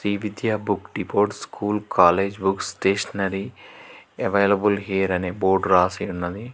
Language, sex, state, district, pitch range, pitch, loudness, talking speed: Telugu, male, Telangana, Hyderabad, 95-105 Hz, 100 Hz, -22 LUFS, 130 wpm